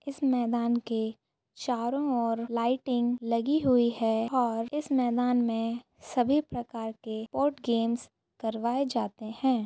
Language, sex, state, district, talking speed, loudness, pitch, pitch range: Hindi, female, Bihar, Madhepura, 130 wpm, -29 LUFS, 240 Hz, 230-255 Hz